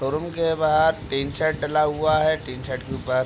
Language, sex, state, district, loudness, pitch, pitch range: Hindi, male, Uttar Pradesh, Deoria, -23 LUFS, 150 Hz, 135-155 Hz